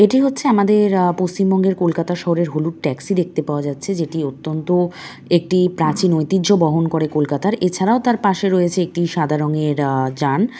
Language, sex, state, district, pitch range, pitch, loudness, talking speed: Bengali, female, West Bengal, North 24 Parganas, 155-190 Hz, 175 Hz, -18 LUFS, 165 wpm